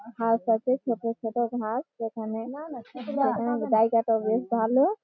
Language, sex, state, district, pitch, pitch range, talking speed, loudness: Bengali, female, West Bengal, Malda, 230 Hz, 225-255 Hz, 130 wpm, -27 LUFS